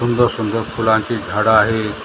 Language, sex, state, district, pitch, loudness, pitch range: Marathi, male, Maharashtra, Gondia, 110 Hz, -16 LUFS, 105-115 Hz